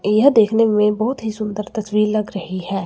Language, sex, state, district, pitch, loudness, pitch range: Hindi, female, Chandigarh, Chandigarh, 210 Hz, -18 LUFS, 210-220 Hz